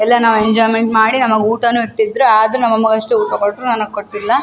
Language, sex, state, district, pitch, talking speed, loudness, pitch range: Kannada, female, Karnataka, Raichur, 225 Hz, 215 wpm, -13 LUFS, 220-245 Hz